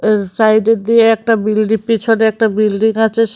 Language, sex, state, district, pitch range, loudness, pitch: Bengali, female, Tripura, West Tripura, 215-225 Hz, -13 LUFS, 220 Hz